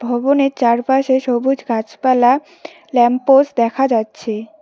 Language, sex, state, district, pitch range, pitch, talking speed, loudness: Bengali, female, West Bengal, Cooch Behar, 240-275 Hz, 260 Hz, 115 wpm, -15 LUFS